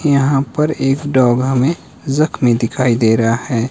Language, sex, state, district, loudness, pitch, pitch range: Hindi, male, Himachal Pradesh, Shimla, -15 LUFS, 135 Hz, 120-145 Hz